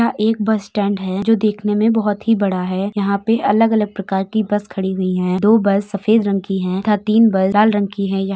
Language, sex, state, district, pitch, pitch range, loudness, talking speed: Bhojpuri, female, Uttar Pradesh, Gorakhpur, 205 Hz, 195-215 Hz, -17 LUFS, 250 wpm